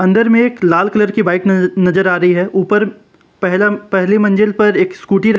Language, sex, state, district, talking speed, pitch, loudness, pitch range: Hindi, male, Jharkhand, Palamu, 220 wpm, 195 Hz, -13 LUFS, 185-210 Hz